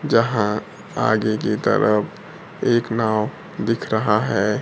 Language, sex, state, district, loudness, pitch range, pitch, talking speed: Hindi, male, Bihar, Kaimur, -20 LUFS, 105-115 Hz, 110 Hz, 115 wpm